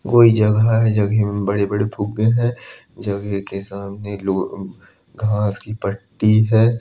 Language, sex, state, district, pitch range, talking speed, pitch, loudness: Hindi, male, Uttar Pradesh, Jalaun, 100-110 Hz, 160 wpm, 105 Hz, -19 LUFS